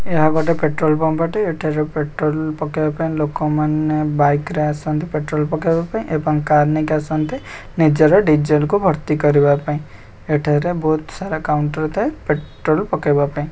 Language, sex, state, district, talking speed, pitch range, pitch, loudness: Odia, male, Odisha, Khordha, 140 wpm, 150-155 Hz, 155 Hz, -18 LUFS